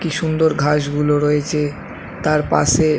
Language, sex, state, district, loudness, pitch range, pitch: Bengali, male, West Bengal, Kolkata, -17 LUFS, 150-155 Hz, 150 Hz